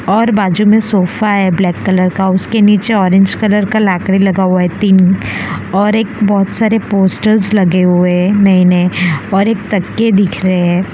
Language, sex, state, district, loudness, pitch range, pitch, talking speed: Hindi, female, Gujarat, Valsad, -11 LUFS, 185-210 Hz, 195 Hz, 180 wpm